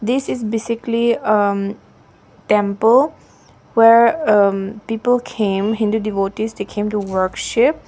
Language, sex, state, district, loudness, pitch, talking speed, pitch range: English, female, Nagaland, Dimapur, -17 LUFS, 215 Hz, 120 wpm, 200-230 Hz